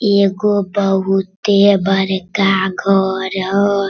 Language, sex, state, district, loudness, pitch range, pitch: Hindi, female, Bihar, Sitamarhi, -15 LUFS, 190-200 Hz, 195 Hz